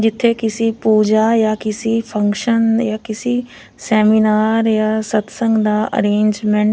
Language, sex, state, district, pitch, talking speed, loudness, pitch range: Punjabi, female, Punjab, Fazilka, 220 Hz, 125 wpm, -16 LUFS, 215-225 Hz